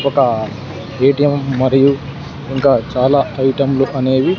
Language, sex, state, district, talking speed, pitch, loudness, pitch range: Telugu, male, Andhra Pradesh, Sri Satya Sai, 110 wpm, 135 Hz, -15 LUFS, 130-140 Hz